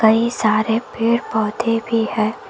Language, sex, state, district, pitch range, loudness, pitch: Hindi, female, Karnataka, Koppal, 220-230 Hz, -19 LUFS, 225 Hz